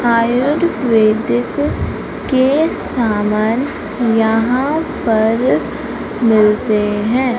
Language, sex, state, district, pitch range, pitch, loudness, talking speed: Hindi, female, Madhya Pradesh, Umaria, 220-260 Hz, 230 Hz, -15 LUFS, 55 wpm